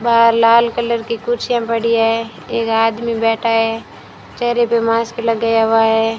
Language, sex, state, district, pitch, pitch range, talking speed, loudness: Hindi, female, Rajasthan, Bikaner, 230 Hz, 225-235 Hz, 165 wpm, -15 LUFS